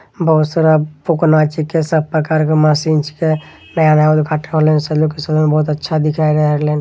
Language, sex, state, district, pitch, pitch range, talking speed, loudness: Angika, male, Bihar, Begusarai, 155 Hz, 150-155 Hz, 140 wpm, -14 LUFS